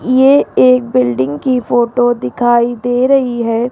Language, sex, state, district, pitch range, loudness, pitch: Hindi, female, Rajasthan, Jaipur, 235-255 Hz, -12 LUFS, 245 Hz